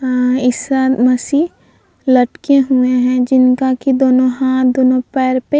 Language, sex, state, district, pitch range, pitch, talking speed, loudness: Hindi, female, Bihar, Vaishali, 255-265 Hz, 255 Hz, 140 wpm, -13 LUFS